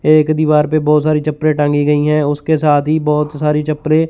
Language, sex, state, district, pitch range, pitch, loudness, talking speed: Hindi, male, Chandigarh, Chandigarh, 150-155 Hz, 150 Hz, -14 LUFS, 220 wpm